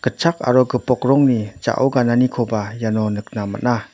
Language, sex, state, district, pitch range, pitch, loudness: Garo, male, Meghalaya, West Garo Hills, 110-125 Hz, 120 Hz, -18 LUFS